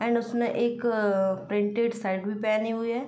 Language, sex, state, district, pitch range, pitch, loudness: Hindi, female, Uttar Pradesh, Jyotiba Phule Nagar, 205-235 Hz, 225 Hz, -27 LUFS